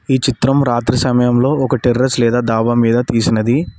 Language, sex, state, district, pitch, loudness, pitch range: Telugu, male, Telangana, Mahabubabad, 125 Hz, -14 LUFS, 120-130 Hz